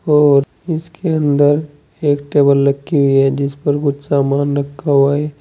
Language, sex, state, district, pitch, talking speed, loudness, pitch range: Hindi, male, Uttar Pradesh, Saharanpur, 145 Hz, 165 wpm, -15 LUFS, 140-150 Hz